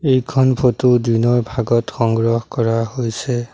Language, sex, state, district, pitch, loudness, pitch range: Assamese, male, Assam, Sonitpur, 120 Hz, -17 LUFS, 115-125 Hz